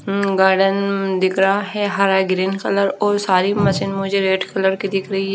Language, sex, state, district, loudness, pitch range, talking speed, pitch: Hindi, female, Haryana, Rohtak, -18 LUFS, 190-200 Hz, 190 wpm, 195 Hz